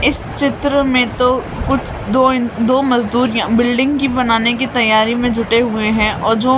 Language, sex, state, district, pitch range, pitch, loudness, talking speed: Hindi, female, Maharashtra, Mumbai Suburban, 230-260 Hz, 245 Hz, -14 LUFS, 175 wpm